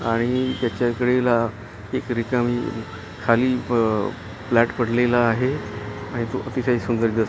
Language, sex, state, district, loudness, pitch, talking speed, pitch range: Marathi, male, Maharashtra, Gondia, -22 LUFS, 120 Hz, 130 wpm, 115-125 Hz